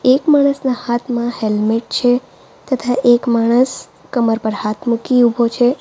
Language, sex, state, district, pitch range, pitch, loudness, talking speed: Gujarati, female, Gujarat, Valsad, 230-255 Hz, 240 Hz, -16 LUFS, 145 wpm